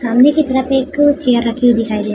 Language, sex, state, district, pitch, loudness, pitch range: Hindi, female, Bihar, Madhepura, 255 Hz, -13 LUFS, 235-275 Hz